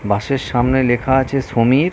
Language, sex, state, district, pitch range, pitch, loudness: Bengali, male, West Bengal, North 24 Parganas, 120-135 Hz, 130 Hz, -16 LUFS